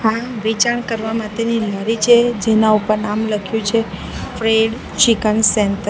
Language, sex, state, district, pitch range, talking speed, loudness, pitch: Gujarati, female, Gujarat, Valsad, 215-230 Hz, 155 wpm, -16 LUFS, 220 Hz